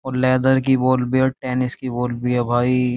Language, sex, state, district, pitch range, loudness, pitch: Hindi, male, Uttar Pradesh, Jyotiba Phule Nagar, 125-130 Hz, -19 LUFS, 125 Hz